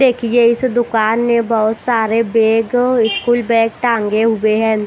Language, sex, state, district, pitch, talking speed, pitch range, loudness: Hindi, female, Bihar, West Champaran, 230 Hz, 150 wpm, 220-240 Hz, -14 LUFS